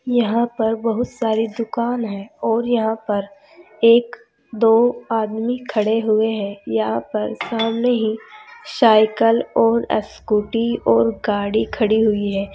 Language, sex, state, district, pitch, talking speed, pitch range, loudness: Hindi, female, Uttar Pradesh, Saharanpur, 225 Hz, 130 wpm, 215-235 Hz, -19 LUFS